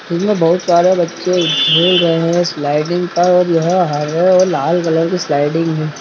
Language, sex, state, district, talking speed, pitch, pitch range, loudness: Hindi, male, Bihar, Saharsa, 190 wpm, 170 Hz, 160-180 Hz, -13 LUFS